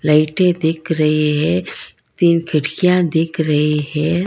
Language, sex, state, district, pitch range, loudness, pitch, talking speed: Hindi, female, Karnataka, Bangalore, 150-170 Hz, -16 LUFS, 160 Hz, 125 wpm